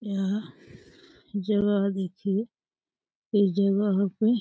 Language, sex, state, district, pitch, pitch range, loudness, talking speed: Hindi, female, Uttar Pradesh, Deoria, 200 Hz, 195-205 Hz, -26 LUFS, 95 wpm